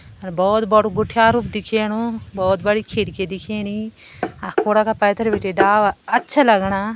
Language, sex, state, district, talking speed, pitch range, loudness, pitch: Garhwali, female, Uttarakhand, Tehri Garhwal, 130 wpm, 195-220 Hz, -18 LUFS, 210 Hz